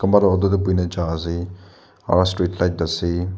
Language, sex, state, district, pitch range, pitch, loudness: Nagamese, male, Nagaland, Dimapur, 85-95 Hz, 90 Hz, -20 LUFS